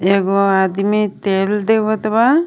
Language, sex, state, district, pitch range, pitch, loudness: Bhojpuri, female, Jharkhand, Palamu, 195-215 Hz, 205 Hz, -16 LUFS